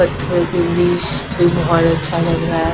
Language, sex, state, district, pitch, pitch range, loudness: Hindi, female, Maharashtra, Mumbai Suburban, 170 Hz, 165-175 Hz, -16 LUFS